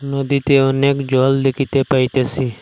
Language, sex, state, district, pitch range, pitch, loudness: Bengali, male, Assam, Hailakandi, 130-140 Hz, 135 Hz, -16 LUFS